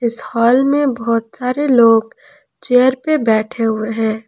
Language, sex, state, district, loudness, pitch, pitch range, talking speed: Hindi, male, Jharkhand, Ranchi, -15 LUFS, 235 Hz, 225-260 Hz, 140 wpm